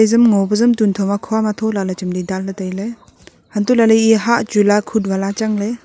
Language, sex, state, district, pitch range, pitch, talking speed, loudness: Wancho, female, Arunachal Pradesh, Longding, 195-225 Hz, 210 Hz, 215 wpm, -16 LUFS